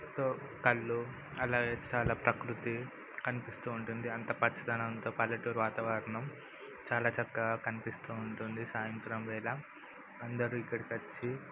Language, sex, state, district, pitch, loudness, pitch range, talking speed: Telugu, male, Andhra Pradesh, Guntur, 115 Hz, -37 LUFS, 115-120 Hz, 90 wpm